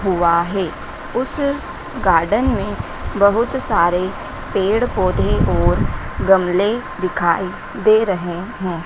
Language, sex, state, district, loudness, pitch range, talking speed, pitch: Hindi, female, Madhya Pradesh, Dhar, -18 LUFS, 170-210 Hz, 100 wpm, 185 Hz